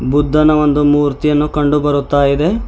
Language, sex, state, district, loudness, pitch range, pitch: Kannada, male, Karnataka, Bidar, -13 LUFS, 145-150 Hz, 145 Hz